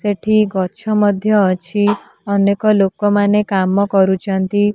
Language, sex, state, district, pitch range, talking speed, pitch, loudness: Odia, female, Odisha, Nuapada, 195-210 Hz, 115 wpm, 205 Hz, -15 LUFS